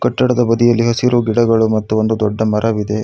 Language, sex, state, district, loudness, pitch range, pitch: Kannada, male, Karnataka, Bangalore, -14 LUFS, 110-120 Hz, 115 Hz